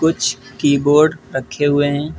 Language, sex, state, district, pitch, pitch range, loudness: Hindi, female, West Bengal, Alipurduar, 145 Hz, 135-150 Hz, -16 LUFS